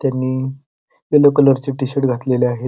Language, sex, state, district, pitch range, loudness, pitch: Marathi, male, Maharashtra, Pune, 130-140 Hz, -16 LUFS, 135 Hz